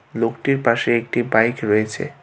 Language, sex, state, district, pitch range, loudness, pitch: Bengali, male, Tripura, West Tripura, 110-120 Hz, -19 LUFS, 115 Hz